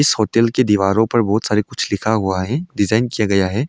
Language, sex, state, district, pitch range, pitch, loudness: Hindi, male, Arunachal Pradesh, Longding, 100-120 Hz, 110 Hz, -17 LUFS